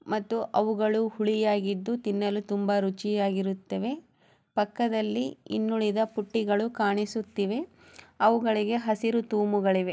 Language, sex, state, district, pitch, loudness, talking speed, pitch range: Kannada, female, Karnataka, Chamarajanagar, 215 Hz, -28 LUFS, 85 wpm, 205-225 Hz